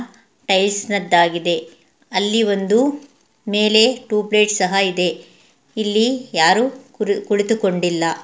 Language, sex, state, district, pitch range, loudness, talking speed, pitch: Kannada, female, Karnataka, Mysore, 185-225 Hz, -17 LUFS, 95 wpm, 205 Hz